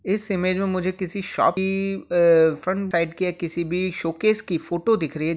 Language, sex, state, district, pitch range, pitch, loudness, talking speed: Hindi, male, Uttar Pradesh, Jyotiba Phule Nagar, 170-195 Hz, 185 Hz, -22 LUFS, 235 wpm